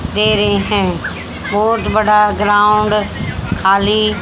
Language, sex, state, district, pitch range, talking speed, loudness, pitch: Hindi, female, Haryana, Jhajjar, 205-210 Hz, 100 wpm, -14 LUFS, 210 Hz